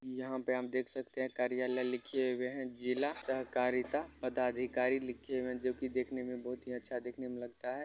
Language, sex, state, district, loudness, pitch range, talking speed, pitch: Hindi, male, Bihar, Lakhisarai, -37 LUFS, 125-130 Hz, 215 wpm, 125 Hz